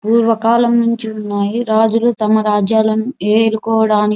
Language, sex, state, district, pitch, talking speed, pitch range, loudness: Telugu, female, Andhra Pradesh, Anantapur, 220 Hz, 115 wpm, 215-230 Hz, -14 LUFS